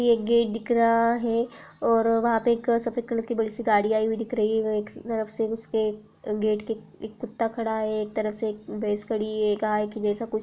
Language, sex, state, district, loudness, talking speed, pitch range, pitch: Hindi, female, Uttar Pradesh, Jalaun, -26 LUFS, 220 wpm, 215-230 Hz, 220 Hz